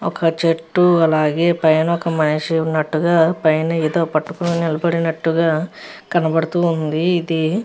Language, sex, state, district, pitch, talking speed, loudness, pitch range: Telugu, female, Andhra Pradesh, Visakhapatnam, 165 Hz, 120 wpm, -17 LUFS, 160-170 Hz